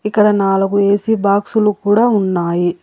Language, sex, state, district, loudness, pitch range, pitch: Telugu, female, Telangana, Hyderabad, -14 LUFS, 195-210 Hz, 200 Hz